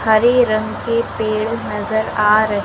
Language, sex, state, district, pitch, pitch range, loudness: Hindi, female, Madhya Pradesh, Dhar, 220 Hz, 215-230 Hz, -17 LUFS